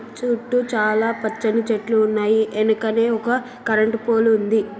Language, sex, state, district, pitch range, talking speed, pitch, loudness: Telugu, female, Telangana, Nalgonda, 220-230 Hz, 125 wpm, 225 Hz, -20 LUFS